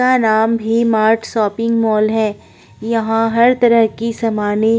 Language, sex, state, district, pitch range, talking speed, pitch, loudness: Hindi, female, Uttar Pradesh, Budaun, 220-230 Hz, 165 wpm, 225 Hz, -15 LUFS